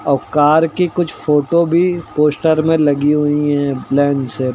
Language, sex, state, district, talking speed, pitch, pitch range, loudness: Hindi, male, Uttar Pradesh, Lucknow, 170 wpm, 150 Hz, 145-165 Hz, -15 LUFS